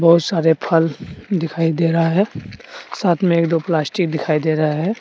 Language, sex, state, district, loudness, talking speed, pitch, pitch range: Hindi, male, Jharkhand, Deoghar, -18 LUFS, 190 wpm, 165 Hz, 160-180 Hz